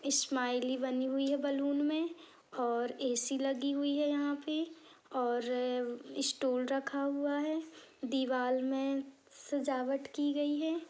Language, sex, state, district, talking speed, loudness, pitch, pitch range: Hindi, female, Uttar Pradesh, Budaun, 135 wpm, -35 LUFS, 275 Hz, 260-290 Hz